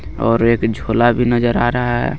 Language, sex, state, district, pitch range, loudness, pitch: Hindi, male, Jharkhand, Garhwa, 115-120 Hz, -16 LUFS, 120 Hz